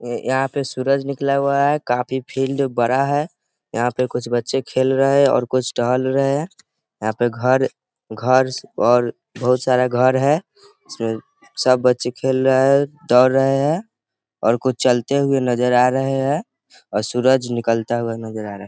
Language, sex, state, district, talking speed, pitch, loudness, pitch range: Hindi, male, Bihar, East Champaran, 180 wpm, 130 Hz, -19 LUFS, 120-140 Hz